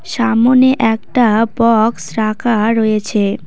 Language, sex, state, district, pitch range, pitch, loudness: Bengali, female, West Bengal, Cooch Behar, 215-240 Hz, 225 Hz, -13 LUFS